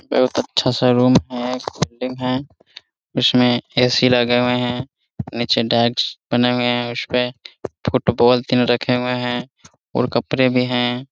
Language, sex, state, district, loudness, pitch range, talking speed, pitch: Hindi, male, Bihar, Muzaffarpur, -18 LUFS, 120-125 Hz, 155 wpm, 125 Hz